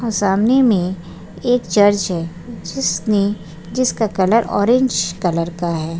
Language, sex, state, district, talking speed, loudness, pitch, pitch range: Hindi, female, Bihar, Purnia, 140 wpm, -17 LUFS, 195 Hz, 175-225 Hz